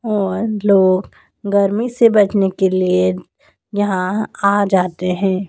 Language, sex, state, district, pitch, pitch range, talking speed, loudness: Hindi, female, Madhya Pradesh, Dhar, 195 Hz, 185-205 Hz, 120 wpm, -16 LUFS